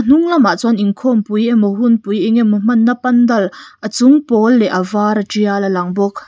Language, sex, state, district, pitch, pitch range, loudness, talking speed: Mizo, female, Mizoram, Aizawl, 220 Hz, 205-240 Hz, -13 LUFS, 180 wpm